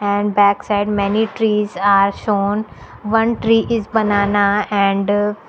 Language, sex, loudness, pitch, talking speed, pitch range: English, female, -16 LUFS, 205 Hz, 130 wpm, 200-220 Hz